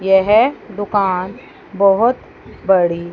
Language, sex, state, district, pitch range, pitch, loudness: Hindi, female, Chandigarh, Chandigarh, 190-210 Hz, 195 Hz, -15 LUFS